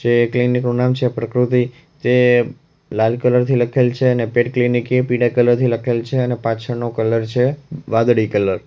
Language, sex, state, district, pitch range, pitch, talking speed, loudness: Gujarati, male, Gujarat, Valsad, 120-125 Hz, 120 Hz, 200 wpm, -17 LUFS